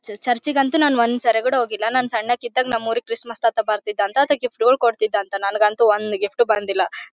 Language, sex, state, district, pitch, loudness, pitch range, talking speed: Kannada, female, Karnataka, Bellary, 230 Hz, -19 LUFS, 215-245 Hz, 195 wpm